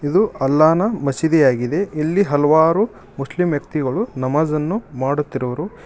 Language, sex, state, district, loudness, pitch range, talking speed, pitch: Kannada, male, Karnataka, Koppal, -18 LUFS, 135-165 Hz, 100 wpm, 150 Hz